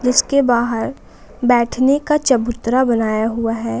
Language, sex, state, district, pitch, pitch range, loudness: Hindi, female, Jharkhand, Palamu, 240 Hz, 230-255 Hz, -17 LUFS